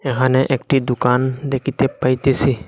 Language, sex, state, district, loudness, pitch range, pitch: Bengali, male, Assam, Hailakandi, -18 LUFS, 130-135 Hz, 130 Hz